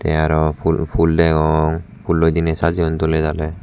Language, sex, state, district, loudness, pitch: Chakma, male, Tripura, Dhalai, -17 LUFS, 80 Hz